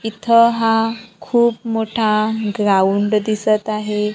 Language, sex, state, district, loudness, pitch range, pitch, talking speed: Marathi, female, Maharashtra, Gondia, -17 LUFS, 210-225 Hz, 220 Hz, 100 wpm